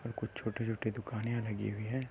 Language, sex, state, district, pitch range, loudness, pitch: Hindi, male, Uttar Pradesh, Gorakhpur, 110-115 Hz, -38 LUFS, 110 Hz